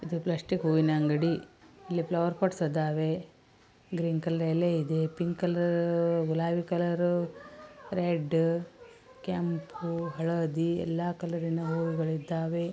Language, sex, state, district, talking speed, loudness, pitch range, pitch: Kannada, female, Karnataka, Belgaum, 115 wpm, -30 LUFS, 165-175 Hz, 170 Hz